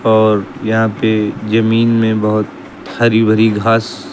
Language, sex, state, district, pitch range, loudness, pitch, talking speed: Hindi, male, Uttar Pradesh, Lucknow, 110-115 Hz, -13 LUFS, 110 Hz, 130 wpm